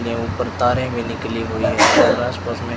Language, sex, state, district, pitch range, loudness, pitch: Hindi, male, Rajasthan, Bikaner, 115-120 Hz, -18 LUFS, 120 Hz